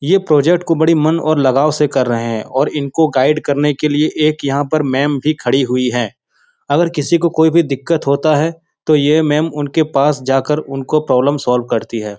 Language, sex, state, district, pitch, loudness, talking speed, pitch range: Hindi, male, Bihar, Jahanabad, 150 Hz, -14 LUFS, 215 wpm, 135-155 Hz